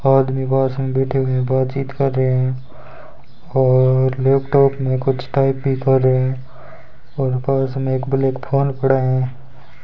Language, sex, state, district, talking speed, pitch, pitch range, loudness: Hindi, male, Rajasthan, Bikaner, 165 wpm, 130 Hz, 130-135 Hz, -18 LUFS